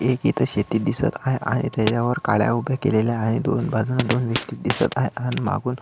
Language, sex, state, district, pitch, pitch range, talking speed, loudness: Marathi, male, Maharashtra, Solapur, 120 Hz, 115-130 Hz, 195 wpm, -22 LUFS